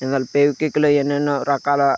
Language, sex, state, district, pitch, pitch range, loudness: Telugu, male, Andhra Pradesh, Krishna, 145 Hz, 140-145 Hz, -18 LUFS